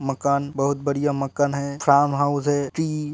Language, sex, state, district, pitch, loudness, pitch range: Hindi, male, Uttar Pradesh, Hamirpur, 140 Hz, -22 LUFS, 140-145 Hz